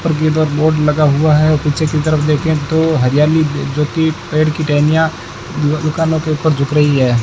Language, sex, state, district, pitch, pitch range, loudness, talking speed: Hindi, male, Rajasthan, Bikaner, 155 Hz, 150-155 Hz, -14 LUFS, 190 wpm